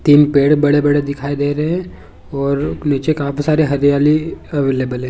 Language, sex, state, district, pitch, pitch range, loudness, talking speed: Hindi, male, Chhattisgarh, Bilaspur, 145 Hz, 140-150 Hz, -15 LUFS, 175 wpm